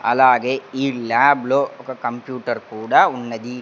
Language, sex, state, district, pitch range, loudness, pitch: Telugu, male, Andhra Pradesh, Sri Satya Sai, 120-135 Hz, -19 LUFS, 125 Hz